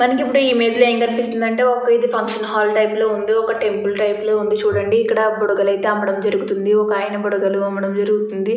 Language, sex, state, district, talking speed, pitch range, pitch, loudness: Telugu, female, Andhra Pradesh, Chittoor, 180 wpm, 205-230 Hz, 215 Hz, -17 LUFS